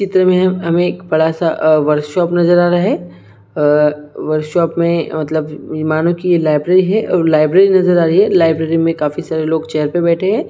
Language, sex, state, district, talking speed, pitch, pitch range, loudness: Hindi, male, Chhattisgarh, Bilaspur, 215 wpm, 165 Hz, 155-175 Hz, -14 LUFS